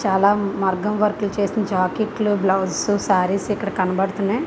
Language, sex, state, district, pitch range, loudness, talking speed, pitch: Telugu, female, Andhra Pradesh, Visakhapatnam, 190-210 Hz, -20 LUFS, 135 wpm, 200 Hz